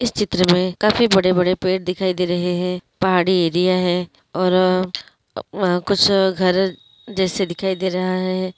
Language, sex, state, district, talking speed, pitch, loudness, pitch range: Hindi, female, Uttarakhand, Uttarkashi, 155 wpm, 185 Hz, -18 LUFS, 180-190 Hz